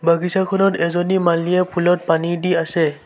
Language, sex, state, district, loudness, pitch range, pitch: Assamese, male, Assam, Sonitpur, -18 LUFS, 170-180 Hz, 175 Hz